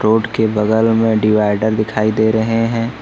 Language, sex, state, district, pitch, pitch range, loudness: Hindi, male, Uttar Pradesh, Lucknow, 110 Hz, 110-115 Hz, -15 LUFS